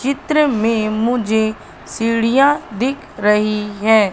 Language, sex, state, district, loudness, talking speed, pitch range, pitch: Hindi, female, Madhya Pradesh, Katni, -16 LUFS, 100 wpm, 215-265 Hz, 225 Hz